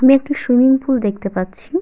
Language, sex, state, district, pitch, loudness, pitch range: Bengali, female, West Bengal, Jalpaiguri, 260 Hz, -16 LUFS, 205-270 Hz